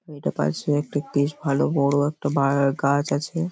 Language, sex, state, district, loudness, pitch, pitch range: Bengali, male, West Bengal, Paschim Medinipur, -23 LUFS, 145 Hz, 140-150 Hz